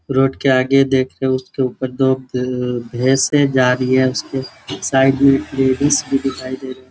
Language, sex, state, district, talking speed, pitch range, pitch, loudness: Hindi, male, Jharkhand, Sahebganj, 210 wpm, 130-135 Hz, 130 Hz, -17 LUFS